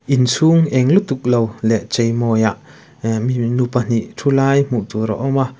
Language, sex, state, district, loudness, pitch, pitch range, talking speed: Mizo, male, Mizoram, Aizawl, -17 LUFS, 125 Hz, 115-135 Hz, 180 wpm